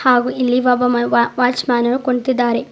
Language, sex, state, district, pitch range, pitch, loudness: Kannada, female, Karnataka, Bidar, 240-255 Hz, 245 Hz, -16 LUFS